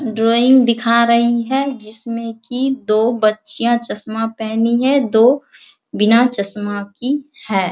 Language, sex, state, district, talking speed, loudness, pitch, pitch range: Hindi, female, Bihar, Saharsa, 125 wpm, -15 LUFS, 230 Hz, 220-245 Hz